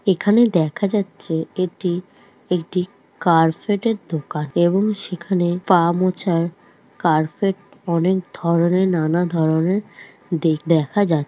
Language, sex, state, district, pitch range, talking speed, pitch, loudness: Bengali, male, West Bengal, Jalpaiguri, 165-195 Hz, 95 wpm, 180 Hz, -20 LUFS